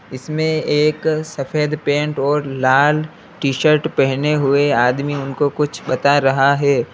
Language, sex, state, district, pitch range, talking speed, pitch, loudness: Hindi, male, Uttar Pradesh, Lalitpur, 135-150 Hz, 140 wpm, 145 Hz, -17 LUFS